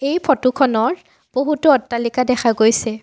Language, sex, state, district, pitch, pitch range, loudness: Assamese, female, Assam, Sonitpur, 255 Hz, 235-285 Hz, -17 LUFS